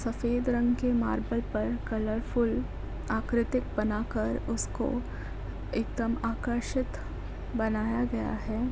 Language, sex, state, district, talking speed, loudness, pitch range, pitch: Hindi, female, Uttar Pradesh, Hamirpur, 115 wpm, -31 LUFS, 220-240 Hz, 230 Hz